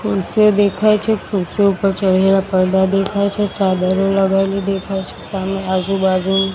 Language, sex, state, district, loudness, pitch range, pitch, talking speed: Gujarati, female, Gujarat, Gandhinagar, -16 LUFS, 190-200 Hz, 195 Hz, 135 wpm